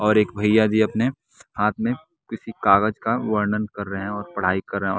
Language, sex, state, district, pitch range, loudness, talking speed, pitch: Hindi, male, Bihar, West Champaran, 100-110 Hz, -22 LUFS, 230 wpm, 105 Hz